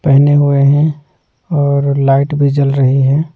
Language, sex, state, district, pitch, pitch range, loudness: Hindi, male, Delhi, New Delhi, 140 Hz, 140-145 Hz, -12 LUFS